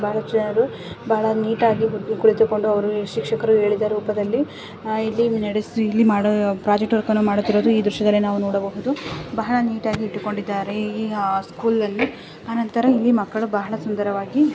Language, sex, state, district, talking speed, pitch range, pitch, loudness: Kannada, female, Karnataka, Dharwad, 115 wpm, 210-225 Hz, 215 Hz, -21 LUFS